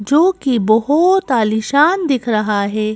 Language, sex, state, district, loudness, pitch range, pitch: Hindi, female, Madhya Pradesh, Bhopal, -15 LUFS, 215-305 Hz, 245 Hz